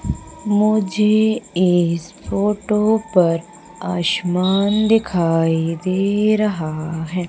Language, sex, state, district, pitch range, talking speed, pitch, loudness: Hindi, female, Madhya Pradesh, Umaria, 170-210 Hz, 75 wpm, 185 Hz, -18 LUFS